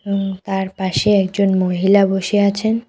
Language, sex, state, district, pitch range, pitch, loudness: Bengali, female, West Bengal, Cooch Behar, 190-200 Hz, 195 Hz, -17 LUFS